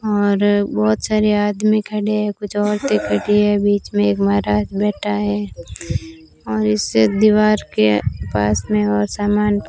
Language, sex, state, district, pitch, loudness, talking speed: Hindi, female, Rajasthan, Bikaner, 115 Hz, -17 LUFS, 155 wpm